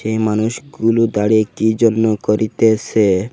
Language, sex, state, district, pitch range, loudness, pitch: Bengali, male, Assam, Hailakandi, 105-115 Hz, -16 LUFS, 110 Hz